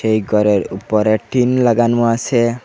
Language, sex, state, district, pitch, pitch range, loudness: Bengali, male, Assam, Hailakandi, 115 Hz, 110-120 Hz, -15 LUFS